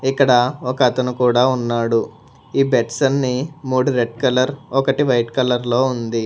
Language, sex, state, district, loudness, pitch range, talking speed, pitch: Telugu, male, Telangana, Hyderabad, -18 LUFS, 120-135 Hz, 155 wpm, 130 Hz